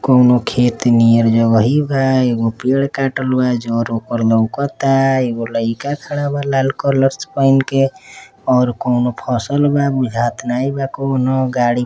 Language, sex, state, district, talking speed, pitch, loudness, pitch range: Bhojpuri, male, Uttar Pradesh, Deoria, 155 wpm, 130 Hz, -16 LUFS, 120-135 Hz